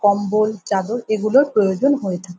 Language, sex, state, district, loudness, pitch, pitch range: Bengali, female, West Bengal, North 24 Parganas, -18 LUFS, 210 Hz, 195-220 Hz